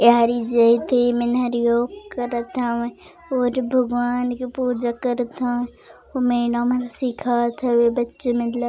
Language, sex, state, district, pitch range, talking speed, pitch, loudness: Chhattisgarhi, female, Chhattisgarh, Raigarh, 235-250 Hz, 140 wpm, 245 Hz, -21 LUFS